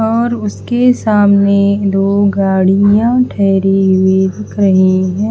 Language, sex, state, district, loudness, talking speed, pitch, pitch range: Hindi, female, Haryana, Charkhi Dadri, -11 LUFS, 115 wpm, 200 Hz, 190-210 Hz